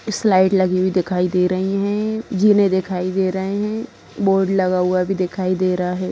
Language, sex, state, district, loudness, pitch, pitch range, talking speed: Hindi, female, Maharashtra, Aurangabad, -18 LUFS, 190 Hz, 185-200 Hz, 195 wpm